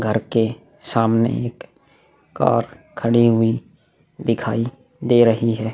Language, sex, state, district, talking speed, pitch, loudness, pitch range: Hindi, male, Goa, North and South Goa, 115 wpm, 115 Hz, -19 LUFS, 115-120 Hz